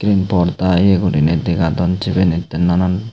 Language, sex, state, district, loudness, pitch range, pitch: Chakma, male, Tripura, Unakoti, -15 LUFS, 85-95 Hz, 90 Hz